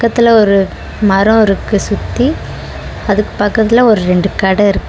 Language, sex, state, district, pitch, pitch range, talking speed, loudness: Tamil, female, Tamil Nadu, Chennai, 205 Hz, 195-220 Hz, 135 wpm, -12 LUFS